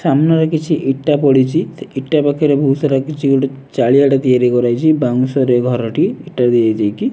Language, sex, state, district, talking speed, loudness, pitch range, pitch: Odia, male, Odisha, Nuapada, 150 wpm, -14 LUFS, 125-150 Hz, 135 Hz